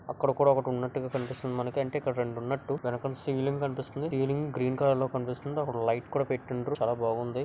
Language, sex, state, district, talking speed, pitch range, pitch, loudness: Telugu, male, Andhra Pradesh, Krishna, 200 wpm, 125-140 Hz, 130 Hz, -30 LUFS